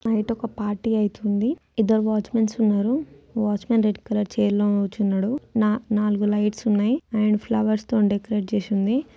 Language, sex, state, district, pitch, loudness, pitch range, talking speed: Telugu, female, Telangana, Nalgonda, 215 Hz, -23 LUFS, 205-225 Hz, 150 wpm